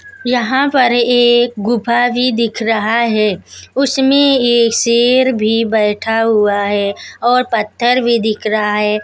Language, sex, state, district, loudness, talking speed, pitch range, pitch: Hindi, female, Maharashtra, Mumbai Suburban, -13 LUFS, 140 wpm, 215-245 Hz, 235 Hz